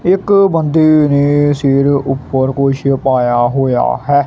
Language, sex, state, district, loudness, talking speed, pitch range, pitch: Punjabi, male, Punjab, Kapurthala, -12 LUFS, 125 wpm, 135-150 Hz, 140 Hz